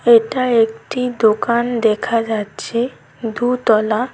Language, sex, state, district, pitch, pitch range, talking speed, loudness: Bengali, female, West Bengal, Cooch Behar, 235 Hz, 220-245 Hz, 85 wpm, -17 LUFS